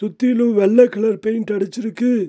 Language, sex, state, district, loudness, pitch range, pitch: Tamil, male, Tamil Nadu, Nilgiris, -17 LUFS, 210-240 Hz, 220 Hz